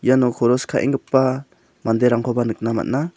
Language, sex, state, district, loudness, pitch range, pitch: Garo, male, Meghalaya, South Garo Hills, -19 LUFS, 120-130 Hz, 125 Hz